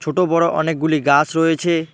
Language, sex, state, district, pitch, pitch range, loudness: Bengali, male, West Bengal, Alipurduar, 160 Hz, 155-165 Hz, -17 LUFS